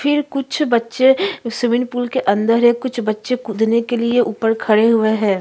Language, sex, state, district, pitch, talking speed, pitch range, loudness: Hindi, female, Chhattisgarh, Korba, 235 Hz, 190 wpm, 225-255 Hz, -17 LUFS